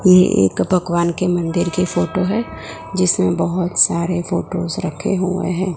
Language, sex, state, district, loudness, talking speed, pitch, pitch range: Hindi, female, Gujarat, Gandhinagar, -17 LUFS, 145 wpm, 180 Hz, 175-185 Hz